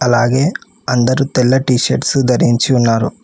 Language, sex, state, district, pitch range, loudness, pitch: Telugu, male, Telangana, Hyderabad, 120-135 Hz, -13 LUFS, 125 Hz